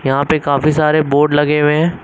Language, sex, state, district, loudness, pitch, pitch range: Hindi, male, Uttar Pradesh, Lucknow, -13 LUFS, 150 Hz, 145-155 Hz